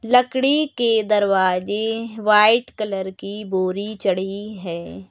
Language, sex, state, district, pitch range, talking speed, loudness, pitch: Hindi, male, Uttar Pradesh, Lucknow, 190-225 Hz, 115 wpm, -20 LUFS, 210 Hz